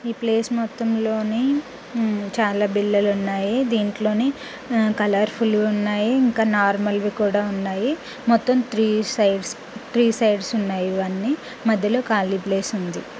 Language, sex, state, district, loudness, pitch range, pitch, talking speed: Telugu, female, Telangana, Nalgonda, -21 LUFS, 205-235 Hz, 215 Hz, 115 wpm